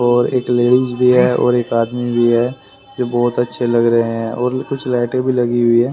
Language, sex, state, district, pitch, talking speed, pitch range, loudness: Hindi, male, Haryana, Rohtak, 120 Hz, 235 wpm, 120-125 Hz, -16 LUFS